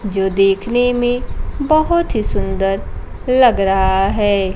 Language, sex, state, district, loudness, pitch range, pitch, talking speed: Hindi, female, Bihar, Kaimur, -16 LUFS, 195-245 Hz, 205 Hz, 120 wpm